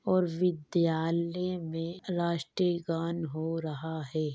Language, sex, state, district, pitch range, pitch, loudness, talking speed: Hindi, female, Uttar Pradesh, Hamirpur, 160-175 Hz, 165 Hz, -32 LUFS, 110 wpm